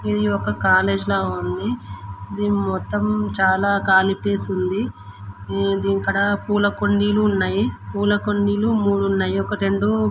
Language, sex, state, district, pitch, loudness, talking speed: Telugu, female, Andhra Pradesh, Guntur, 190 Hz, -20 LUFS, 105 wpm